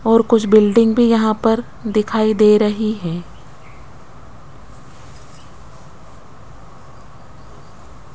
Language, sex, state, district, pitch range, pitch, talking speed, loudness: Hindi, female, Rajasthan, Jaipur, 215-225 Hz, 220 Hz, 75 wpm, -15 LUFS